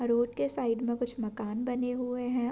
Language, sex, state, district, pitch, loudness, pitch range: Hindi, female, Uttarakhand, Tehri Garhwal, 240 Hz, -32 LUFS, 230-245 Hz